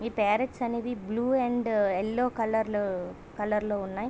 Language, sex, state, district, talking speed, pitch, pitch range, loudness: Telugu, female, Andhra Pradesh, Visakhapatnam, 145 wpm, 220 Hz, 205-240 Hz, -29 LUFS